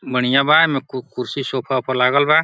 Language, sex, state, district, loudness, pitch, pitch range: Hindi, male, Uttar Pradesh, Deoria, -17 LUFS, 130 Hz, 125-140 Hz